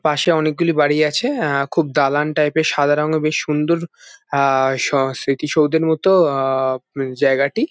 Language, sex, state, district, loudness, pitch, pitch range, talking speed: Bengali, male, West Bengal, Jalpaiguri, -17 LUFS, 150 Hz, 140-160 Hz, 125 wpm